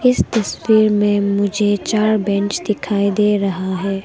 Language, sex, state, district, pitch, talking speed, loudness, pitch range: Hindi, female, Arunachal Pradesh, Longding, 205 Hz, 150 wpm, -17 LUFS, 200-215 Hz